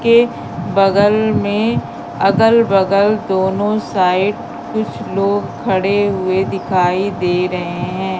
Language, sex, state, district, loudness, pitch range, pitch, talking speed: Hindi, female, Madhya Pradesh, Katni, -15 LUFS, 185-210 Hz, 195 Hz, 110 wpm